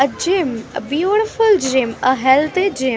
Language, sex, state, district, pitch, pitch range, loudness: English, female, Haryana, Rohtak, 285 Hz, 260-380 Hz, -16 LUFS